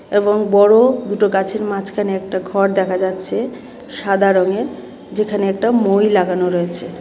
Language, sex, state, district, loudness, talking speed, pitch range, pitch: Bengali, female, Tripura, West Tripura, -16 LUFS, 145 wpm, 190-210 Hz, 195 Hz